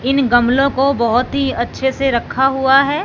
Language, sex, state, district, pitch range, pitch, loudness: Hindi, male, Punjab, Fazilka, 245-275 Hz, 265 Hz, -15 LUFS